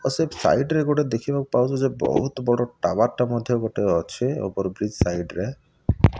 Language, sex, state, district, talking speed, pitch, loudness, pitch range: Odia, male, Odisha, Malkangiri, 185 wpm, 120 Hz, -23 LUFS, 105-135 Hz